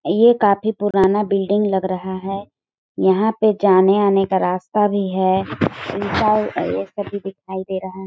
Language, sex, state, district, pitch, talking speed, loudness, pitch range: Hindi, female, Chhattisgarh, Balrampur, 195 Hz, 165 wpm, -18 LUFS, 190-205 Hz